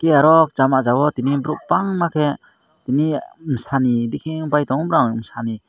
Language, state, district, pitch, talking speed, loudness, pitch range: Kokborok, Tripura, Dhalai, 140 Hz, 170 wpm, -19 LUFS, 130-155 Hz